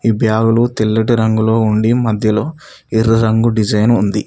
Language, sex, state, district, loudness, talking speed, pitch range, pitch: Telugu, male, Telangana, Mahabubabad, -14 LUFS, 155 wpm, 110-115 Hz, 110 Hz